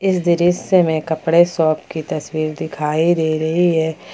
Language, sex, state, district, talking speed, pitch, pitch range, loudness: Hindi, female, Jharkhand, Ranchi, 160 wpm, 160 Hz, 155-175 Hz, -17 LUFS